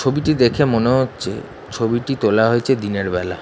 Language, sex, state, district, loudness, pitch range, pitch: Bengali, male, West Bengal, Jhargram, -18 LUFS, 105-130 Hz, 120 Hz